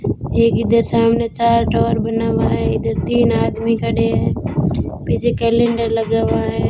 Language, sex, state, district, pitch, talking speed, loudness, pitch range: Hindi, female, Rajasthan, Bikaner, 230 Hz, 160 wpm, -17 LUFS, 225-230 Hz